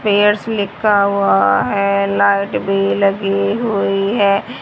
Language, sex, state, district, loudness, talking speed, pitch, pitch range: Hindi, female, Haryana, Charkhi Dadri, -15 LUFS, 115 wpm, 200 Hz, 195-205 Hz